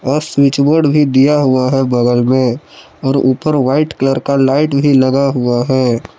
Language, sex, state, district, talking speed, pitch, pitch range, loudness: Hindi, male, Jharkhand, Palamu, 175 wpm, 135 Hz, 130-145 Hz, -12 LUFS